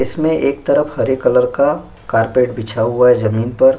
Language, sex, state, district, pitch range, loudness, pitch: Hindi, male, Uttar Pradesh, Jyotiba Phule Nagar, 115-145 Hz, -15 LUFS, 125 Hz